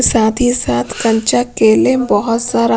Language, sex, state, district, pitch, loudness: Hindi, female, Punjab, Pathankot, 215 Hz, -13 LUFS